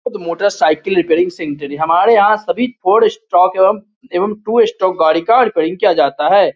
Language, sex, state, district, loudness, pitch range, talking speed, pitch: Hindi, male, Bihar, Muzaffarpur, -14 LUFS, 165-225 Hz, 200 wpm, 190 Hz